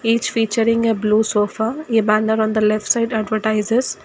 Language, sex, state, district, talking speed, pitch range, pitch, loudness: English, female, Karnataka, Bangalore, 175 wpm, 215-230 Hz, 220 Hz, -18 LUFS